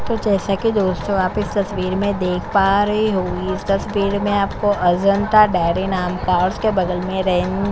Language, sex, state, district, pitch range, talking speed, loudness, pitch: Hindi, female, Chhattisgarh, Korba, 185-205 Hz, 185 wpm, -18 LUFS, 195 Hz